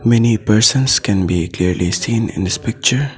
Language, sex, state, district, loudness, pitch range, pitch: English, male, Assam, Sonitpur, -15 LUFS, 90-120 Hz, 110 Hz